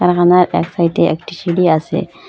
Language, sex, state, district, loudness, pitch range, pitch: Bengali, female, Assam, Hailakandi, -14 LUFS, 170-180 Hz, 175 Hz